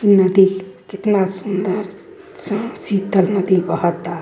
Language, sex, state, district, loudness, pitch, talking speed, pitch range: Hindi, female, Uttar Pradesh, Varanasi, -17 LUFS, 195 Hz, 100 wpm, 190-205 Hz